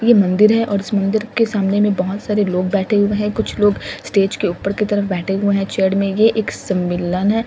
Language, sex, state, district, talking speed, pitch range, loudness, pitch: Hindi, female, Delhi, New Delhi, 250 wpm, 195-210 Hz, -17 LUFS, 200 Hz